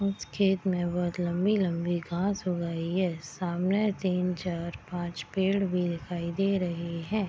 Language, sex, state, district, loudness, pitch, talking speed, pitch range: Hindi, female, Bihar, Gopalganj, -29 LUFS, 180 Hz, 155 wpm, 170-195 Hz